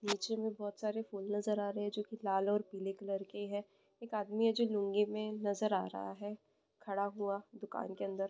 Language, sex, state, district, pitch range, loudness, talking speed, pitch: Hindi, female, West Bengal, Purulia, 200-215 Hz, -38 LUFS, 200 wpm, 205 Hz